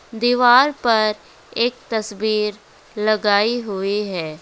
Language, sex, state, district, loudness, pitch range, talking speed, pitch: Hindi, female, West Bengal, Alipurduar, -19 LUFS, 200-230 Hz, 95 wpm, 215 Hz